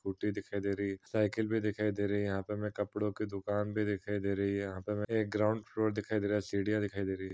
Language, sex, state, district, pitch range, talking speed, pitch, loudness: Hindi, male, Uttar Pradesh, Varanasi, 100-105 Hz, 285 wpm, 105 Hz, -35 LUFS